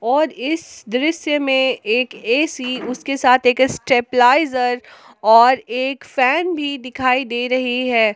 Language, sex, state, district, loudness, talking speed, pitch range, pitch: Hindi, female, Jharkhand, Palamu, -17 LUFS, 130 wpm, 245-280 Hz, 255 Hz